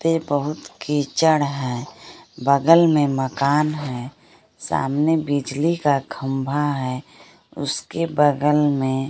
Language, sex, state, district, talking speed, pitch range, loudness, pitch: Hindi, female, Bihar, Kaimur, 105 wpm, 135-150 Hz, -20 LUFS, 145 Hz